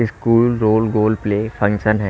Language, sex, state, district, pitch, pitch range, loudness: Hindi, male, Haryana, Rohtak, 110 Hz, 105-115 Hz, -17 LUFS